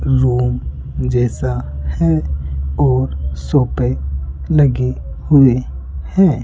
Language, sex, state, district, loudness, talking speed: Hindi, male, Rajasthan, Jaipur, -17 LUFS, 75 wpm